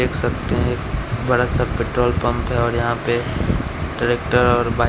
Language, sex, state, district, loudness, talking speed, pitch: Hindi, male, Bihar, West Champaran, -20 LUFS, 170 wpm, 120 Hz